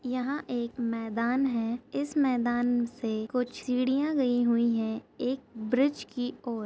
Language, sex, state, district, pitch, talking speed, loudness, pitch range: Hindi, female, Uttar Pradesh, Etah, 245 Hz, 155 wpm, -29 LUFS, 235-260 Hz